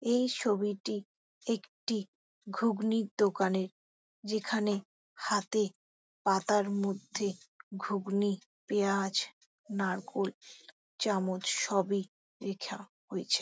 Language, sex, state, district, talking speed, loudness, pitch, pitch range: Bengali, female, West Bengal, Jhargram, 75 wpm, -33 LUFS, 200 Hz, 195-215 Hz